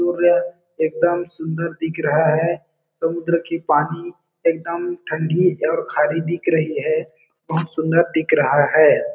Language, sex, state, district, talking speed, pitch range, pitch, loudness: Hindi, male, Chhattisgarh, Balrampur, 140 wpm, 160-175 Hz, 165 Hz, -19 LUFS